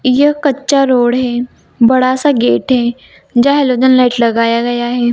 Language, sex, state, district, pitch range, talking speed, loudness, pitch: Hindi, female, Bihar, Gaya, 240-265 Hz, 150 wpm, -12 LUFS, 250 Hz